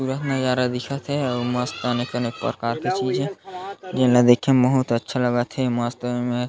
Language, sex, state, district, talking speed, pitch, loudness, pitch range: Chhattisgarhi, male, Chhattisgarh, Sarguja, 185 wpm, 125 Hz, -22 LUFS, 120-135 Hz